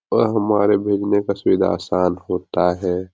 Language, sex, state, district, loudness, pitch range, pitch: Hindi, male, Bihar, Darbhanga, -19 LUFS, 90-100 Hz, 95 Hz